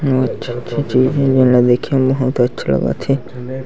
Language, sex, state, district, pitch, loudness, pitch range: Chhattisgarhi, male, Chhattisgarh, Sarguja, 130 Hz, -16 LUFS, 125-135 Hz